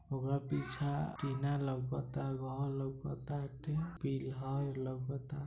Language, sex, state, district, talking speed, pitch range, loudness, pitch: Bhojpuri, male, Bihar, East Champaran, 90 wpm, 135-145 Hz, -39 LUFS, 140 Hz